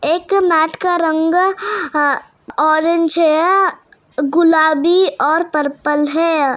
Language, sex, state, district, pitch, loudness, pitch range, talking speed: Hindi, female, Uttar Pradesh, Muzaffarnagar, 325 Hz, -14 LUFS, 305-355 Hz, 90 wpm